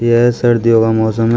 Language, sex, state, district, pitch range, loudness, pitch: Hindi, male, Uttar Pradesh, Shamli, 115-120 Hz, -12 LUFS, 115 Hz